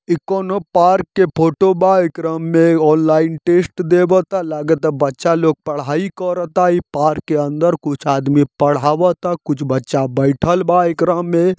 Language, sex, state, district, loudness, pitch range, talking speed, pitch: Bhojpuri, male, Jharkhand, Sahebganj, -15 LUFS, 150-180 Hz, 165 wpm, 165 Hz